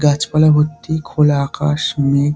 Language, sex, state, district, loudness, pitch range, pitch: Bengali, male, West Bengal, Dakshin Dinajpur, -15 LUFS, 145-155 Hz, 150 Hz